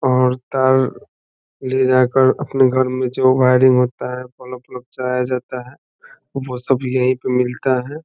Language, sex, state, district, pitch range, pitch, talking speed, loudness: Hindi, male, Bihar, Saran, 125-130 Hz, 130 Hz, 170 wpm, -17 LUFS